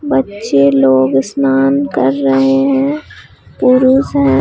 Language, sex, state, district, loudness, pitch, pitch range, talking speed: Hindi, female, Bihar, Katihar, -12 LUFS, 135 Hz, 130-140 Hz, 110 wpm